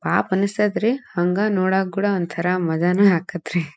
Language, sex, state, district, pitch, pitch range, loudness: Kannada, female, Karnataka, Dharwad, 185 Hz, 175-200 Hz, -20 LUFS